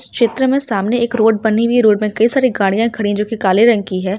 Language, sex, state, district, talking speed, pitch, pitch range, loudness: Hindi, female, Uttar Pradesh, Ghazipur, 300 wpm, 220 Hz, 205-235 Hz, -14 LUFS